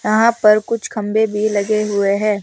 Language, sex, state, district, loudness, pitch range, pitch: Hindi, female, Rajasthan, Jaipur, -16 LUFS, 205-220 Hz, 215 Hz